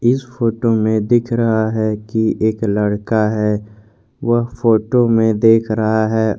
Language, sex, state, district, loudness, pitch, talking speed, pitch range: Hindi, male, Jharkhand, Garhwa, -16 LUFS, 110 Hz, 150 wpm, 110-115 Hz